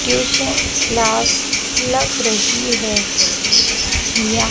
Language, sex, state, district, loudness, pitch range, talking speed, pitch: Hindi, female, Maharashtra, Gondia, -14 LUFS, 215-245 Hz, 80 wpm, 225 Hz